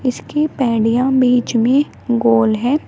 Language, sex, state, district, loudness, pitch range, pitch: Hindi, female, Uttar Pradesh, Shamli, -15 LUFS, 225-265 Hz, 245 Hz